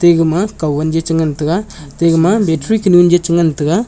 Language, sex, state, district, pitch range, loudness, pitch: Wancho, male, Arunachal Pradesh, Longding, 160-175 Hz, -13 LUFS, 165 Hz